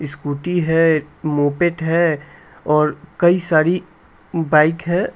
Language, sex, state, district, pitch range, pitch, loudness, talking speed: Hindi, male, Bihar, West Champaran, 150-170 Hz, 160 Hz, -18 LUFS, 115 wpm